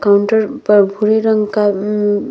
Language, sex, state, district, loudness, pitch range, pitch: Hindi, female, Bihar, Vaishali, -14 LUFS, 205-215 Hz, 210 Hz